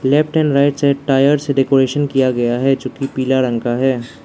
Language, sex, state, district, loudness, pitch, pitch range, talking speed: Hindi, male, Arunachal Pradesh, Lower Dibang Valley, -15 LUFS, 135 Hz, 130-140 Hz, 225 wpm